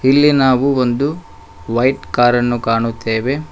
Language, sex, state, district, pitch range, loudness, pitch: Kannada, male, Karnataka, Koppal, 115-135 Hz, -15 LUFS, 125 Hz